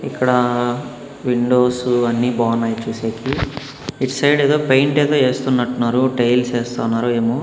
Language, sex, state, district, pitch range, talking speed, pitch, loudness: Telugu, male, Andhra Pradesh, Annamaya, 120-135 Hz, 120 wpm, 125 Hz, -17 LUFS